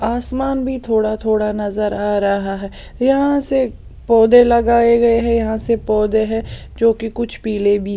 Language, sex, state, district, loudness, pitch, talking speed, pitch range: Hindi, female, Odisha, Sambalpur, -16 LUFS, 225 Hz, 175 wpm, 210-235 Hz